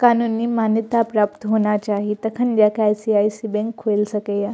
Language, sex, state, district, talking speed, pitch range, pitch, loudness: Maithili, female, Bihar, Purnia, 160 wpm, 210-225 Hz, 215 Hz, -20 LUFS